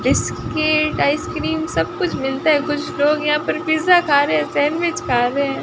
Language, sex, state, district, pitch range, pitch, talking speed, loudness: Hindi, female, Rajasthan, Barmer, 285-315 Hz, 305 Hz, 190 wpm, -18 LUFS